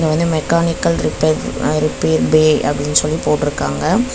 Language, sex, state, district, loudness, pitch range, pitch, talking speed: Tamil, female, Tamil Nadu, Chennai, -16 LUFS, 150-165 Hz, 155 Hz, 130 wpm